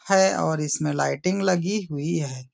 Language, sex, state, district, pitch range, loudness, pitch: Hindi, male, Maharashtra, Nagpur, 145-190 Hz, -24 LUFS, 160 Hz